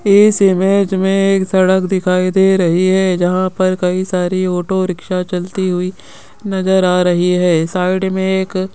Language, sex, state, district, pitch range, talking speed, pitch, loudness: Hindi, female, Rajasthan, Jaipur, 180-190 Hz, 170 wpm, 185 Hz, -14 LUFS